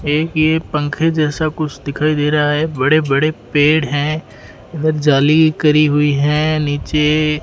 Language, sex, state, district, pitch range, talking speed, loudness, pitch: Hindi, male, Rajasthan, Bikaner, 145-155 Hz, 155 wpm, -15 LUFS, 150 Hz